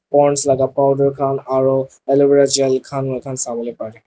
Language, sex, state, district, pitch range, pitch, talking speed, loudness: Nagamese, male, Nagaland, Dimapur, 130-140 Hz, 135 Hz, 175 wpm, -16 LUFS